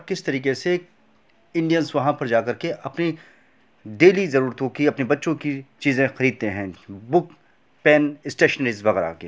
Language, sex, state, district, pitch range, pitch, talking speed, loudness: Hindi, male, Bihar, Gopalganj, 125-165 Hz, 145 Hz, 155 wpm, -21 LUFS